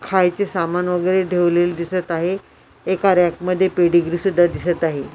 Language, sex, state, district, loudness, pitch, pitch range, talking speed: Marathi, female, Maharashtra, Washim, -18 LUFS, 180 Hz, 170-185 Hz, 150 wpm